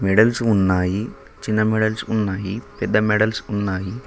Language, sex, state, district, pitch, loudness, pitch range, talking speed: Telugu, male, Telangana, Mahabubabad, 105 Hz, -20 LUFS, 95-110 Hz, 120 wpm